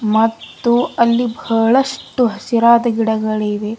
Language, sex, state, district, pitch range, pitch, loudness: Kannada, female, Karnataka, Bidar, 220-240 Hz, 230 Hz, -16 LUFS